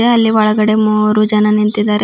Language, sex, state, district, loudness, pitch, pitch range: Kannada, female, Karnataka, Bidar, -12 LUFS, 215 Hz, 210-215 Hz